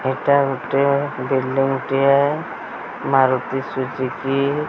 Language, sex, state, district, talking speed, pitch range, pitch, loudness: Odia, female, Odisha, Sambalpur, 90 wpm, 130-140 Hz, 135 Hz, -19 LUFS